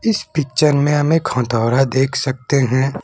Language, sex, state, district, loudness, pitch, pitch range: Hindi, male, Assam, Kamrup Metropolitan, -17 LUFS, 135 Hz, 130-150 Hz